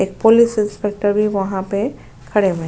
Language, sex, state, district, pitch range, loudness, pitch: Hindi, female, Maharashtra, Chandrapur, 190-210 Hz, -17 LUFS, 205 Hz